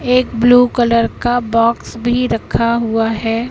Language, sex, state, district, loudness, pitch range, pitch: Hindi, female, Madhya Pradesh, Katni, -14 LUFS, 230-245 Hz, 235 Hz